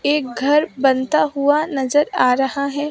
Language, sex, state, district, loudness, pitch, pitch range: Hindi, female, Maharashtra, Mumbai Suburban, -18 LUFS, 280 Hz, 265-295 Hz